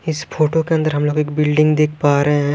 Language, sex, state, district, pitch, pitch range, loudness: Hindi, male, Punjab, Pathankot, 150 Hz, 150-155 Hz, -16 LUFS